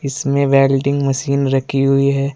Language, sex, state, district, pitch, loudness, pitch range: Hindi, male, Uttar Pradesh, Saharanpur, 140 Hz, -15 LUFS, 135-140 Hz